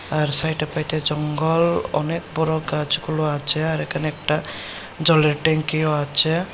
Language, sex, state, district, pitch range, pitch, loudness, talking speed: Bengali, male, Tripura, Unakoti, 150-160 Hz, 155 Hz, -21 LUFS, 130 wpm